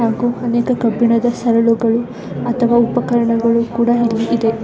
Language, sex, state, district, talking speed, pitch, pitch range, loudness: Kannada, female, Karnataka, Dakshina Kannada, 115 wpm, 235 Hz, 230-240 Hz, -15 LUFS